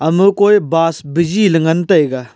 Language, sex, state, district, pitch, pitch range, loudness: Wancho, male, Arunachal Pradesh, Longding, 165 Hz, 160-195 Hz, -13 LUFS